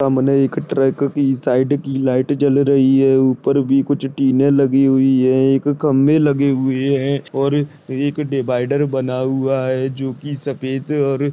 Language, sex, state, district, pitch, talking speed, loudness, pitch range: Hindi, male, Maharashtra, Dhule, 135 Hz, 170 wpm, -17 LUFS, 130-140 Hz